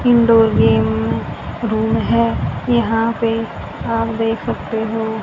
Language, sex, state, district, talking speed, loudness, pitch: Hindi, female, Haryana, Rohtak, 115 wpm, -17 LUFS, 225 Hz